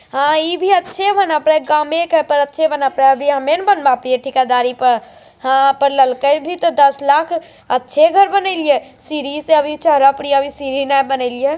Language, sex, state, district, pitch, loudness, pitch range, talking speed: Magahi, female, Bihar, Jamui, 285 Hz, -15 LUFS, 270-315 Hz, 200 wpm